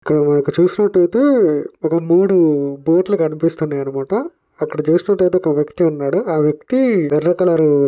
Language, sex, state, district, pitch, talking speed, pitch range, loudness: Telugu, male, Telangana, Nalgonda, 165 Hz, 120 wpm, 150-185 Hz, -16 LUFS